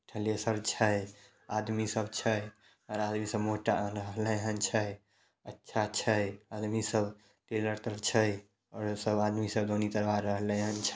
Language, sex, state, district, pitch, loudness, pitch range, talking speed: Maithili, male, Bihar, Samastipur, 105 Hz, -33 LUFS, 105-110 Hz, 100 wpm